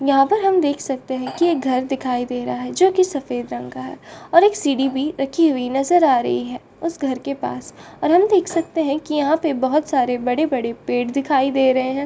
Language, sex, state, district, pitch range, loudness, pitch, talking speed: Hindi, female, Uttar Pradesh, Varanasi, 250-315 Hz, -19 LUFS, 270 Hz, 245 wpm